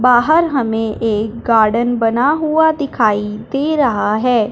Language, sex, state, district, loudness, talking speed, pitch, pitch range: Hindi, male, Punjab, Fazilka, -15 LUFS, 135 wpm, 240 Hz, 220-285 Hz